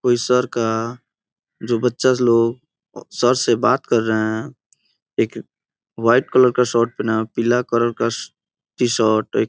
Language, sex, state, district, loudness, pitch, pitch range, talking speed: Hindi, male, Bihar, Gopalganj, -19 LUFS, 120 Hz, 115-125 Hz, 165 wpm